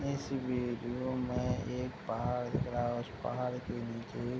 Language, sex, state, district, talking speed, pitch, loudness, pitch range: Hindi, male, Bihar, Madhepura, 175 wpm, 125 Hz, -37 LUFS, 120-125 Hz